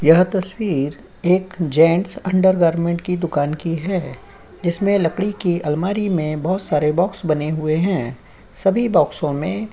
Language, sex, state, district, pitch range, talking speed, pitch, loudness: Hindi, female, Uttar Pradesh, Jyotiba Phule Nagar, 155-190 Hz, 155 wpm, 175 Hz, -19 LUFS